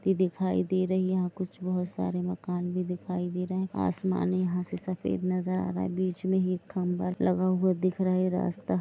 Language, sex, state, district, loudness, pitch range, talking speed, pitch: Hindi, female, Jharkhand, Jamtara, -29 LUFS, 180-185 Hz, 240 wpm, 185 Hz